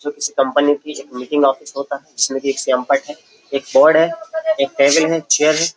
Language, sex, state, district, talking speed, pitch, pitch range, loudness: Hindi, male, Uttar Pradesh, Jyotiba Phule Nagar, 230 wpm, 145 Hz, 140-160 Hz, -16 LUFS